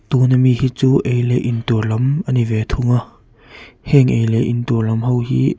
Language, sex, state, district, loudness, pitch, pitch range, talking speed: Mizo, male, Mizoram, Aizawl, -16 LUFS, 125 Hz, 115-130 Hz, 225 wpm